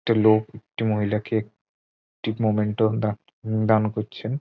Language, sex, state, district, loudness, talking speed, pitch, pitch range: Bengali, male, West Bengal, Jhargram, -24 LUFS, 135 wpm, 110 Hz, 105-110 Hz